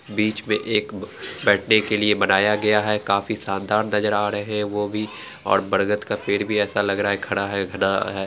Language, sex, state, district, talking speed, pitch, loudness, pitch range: Angika, female, Bihar, Araria, 210 wpm, 105 Hz, -21 LUFS, 100-105 Hz